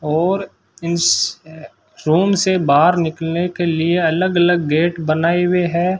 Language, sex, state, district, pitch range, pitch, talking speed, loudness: Hindi, male, Rajasthan, Bikaner, 160-180 Hz, 170 Hz, 140 wpm, -16 LUFS